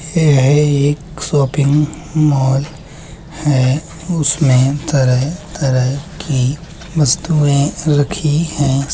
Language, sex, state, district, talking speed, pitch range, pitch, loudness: Hindi, male, Uttar Pradesh, Budaun, 80 wpm, 140-155 Hz, 150 Hz, -15 LUFS